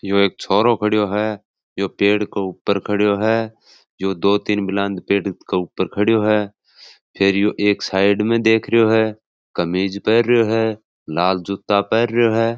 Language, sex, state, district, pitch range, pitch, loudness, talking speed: Marwari, male, Rajasthan, Churu, 100-110 Hz, 105 Hz, -18 LUFS, 170 wpm